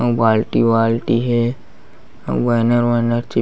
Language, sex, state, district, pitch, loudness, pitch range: Chhattisgarhi, male, Chhattisgarh, Bastar, 120 Hz, -17 LUFS, 115-120 Hz